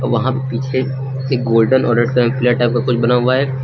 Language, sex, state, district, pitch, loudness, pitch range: Hindi, male, Uttar Pradesh, Lucknow, 125 Hz, -16 LUFS, 120-130 Hz